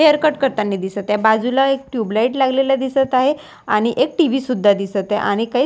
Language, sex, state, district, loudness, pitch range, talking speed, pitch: Marathi, female, Maharashtra, Washim, -17 LUFS, 210-270 Hz, 200 wpm, 255 Hz